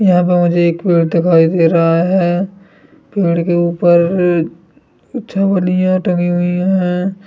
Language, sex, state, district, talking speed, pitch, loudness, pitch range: Hindi, male, Bihar, Sitamarhi, 130 wpm, 180 Hz, -13 LUFS, 170-185 Hz